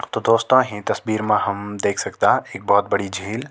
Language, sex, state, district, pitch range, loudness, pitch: Garhwali, male, Uttarakhand, Tehri Garhwal, 100-115 Hz, -20 LUFS, 110 Hz